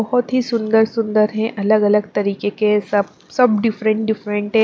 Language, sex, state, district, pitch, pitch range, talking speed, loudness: Hindi, female, Maharashtra, Mumbai Suburban, 215 Hz, 210-225 Hz, 170 wpm, -18 LUFS